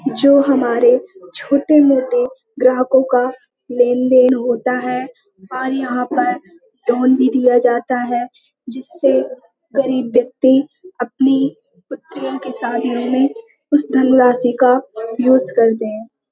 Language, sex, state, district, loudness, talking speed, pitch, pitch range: Hindi, female, Uttar Pradesh, Hamirpur, -15 LUFS, 110 wpm, 255 Hz, 245-270 Hz